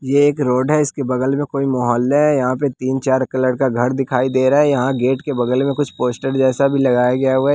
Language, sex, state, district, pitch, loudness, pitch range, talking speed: Hindi, male, Bihar, West Champaran, 130 Hz, -17 LUFS, 125-140 Hz, 260 wpm